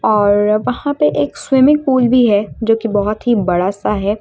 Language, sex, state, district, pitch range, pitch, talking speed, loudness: Hindi, female, Uttar Pradesh, Lucknow, 205-250 Hz, 215 Hz, 200 wpm, -14 LUFS